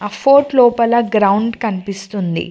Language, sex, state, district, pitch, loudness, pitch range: Telugu, female, Telangana, Mahabubabad, 220 Hz, -14 LUFS, 200-235 Hz